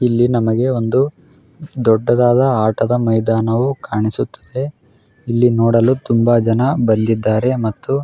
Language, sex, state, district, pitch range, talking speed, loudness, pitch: Kannada, male, Karnataka, Raichur, 115-130 Hz, 110 wpm, -16 LUFS, 120 Hz